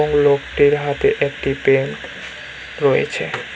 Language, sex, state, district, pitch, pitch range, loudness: Bengali, male, West Bengal, Cooch Behar, 145 Hz, 135-145 Hz, -18 LUFS